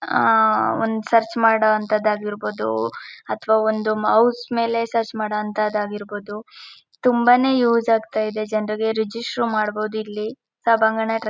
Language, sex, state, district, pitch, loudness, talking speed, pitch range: Kannada, female, Karnataka, Mysore, 220 Hz, -20 LUFS, 105 wpm, 215-230 Hz